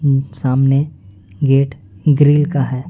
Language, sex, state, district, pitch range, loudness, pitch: Hindi, male, West Bengal, Alipurduar, 130-145 Hz, -15 LUFS, 135 Hz